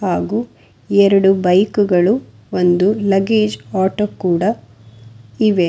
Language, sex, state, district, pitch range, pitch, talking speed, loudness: Kannada, female, Karnataka, Bangalore, 180-210 Hz, 195 Hz, 95 wpm, -16 LUFS